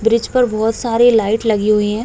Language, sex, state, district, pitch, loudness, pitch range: Hindi, female, Uttar Pradesh, Hamirpur, 225 Hz, -15 LUFS, 215-230 Hz